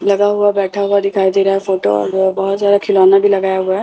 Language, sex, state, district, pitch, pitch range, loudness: Hindi, female, Bihar, Katihar, 195 Hz, 190-200 Hz, -13 LUFS